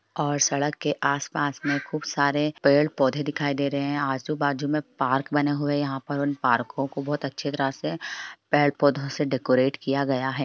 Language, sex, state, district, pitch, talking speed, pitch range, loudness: Hindi, male, Bihar, Lakhisarai, 140 Hz, 195 wpm, 135-145 Hz, -25 LUFS